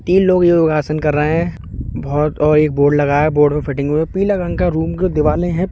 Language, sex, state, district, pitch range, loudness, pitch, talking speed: Hindi, male, Uttar Pradesh, Budaun, 150-175 Hz, -15 LUFS, 155 Hz, 250 wpm